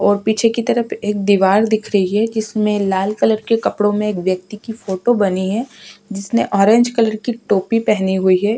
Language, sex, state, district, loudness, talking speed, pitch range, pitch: Hindi, female, Uttarakhand, Tehri Garhwal, -16 LUFS, 205 wpm, 200-225 Hz, 210 Hz